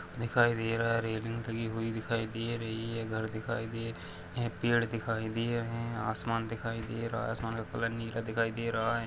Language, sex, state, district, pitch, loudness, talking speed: Hindi, male, Chhattisgarh, Rajnandgaon, 115 Hz, -34 LUFS, 205 wpm